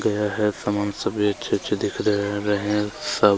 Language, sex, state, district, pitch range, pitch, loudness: Hindi, male, Chhattisgarh, Kabirdham, 100-105 Hz, 105 Hz, -23 LUFS